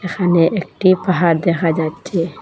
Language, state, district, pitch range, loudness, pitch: Bengali, Assam, Hailakandi, 165-185 Hz, -16 LUFS, 170 Hz